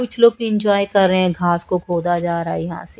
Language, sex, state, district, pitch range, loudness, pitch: Hindi, female, Chhattisgarh, Raipur, 175-210 Hz, -18 LUFS, 185 Hz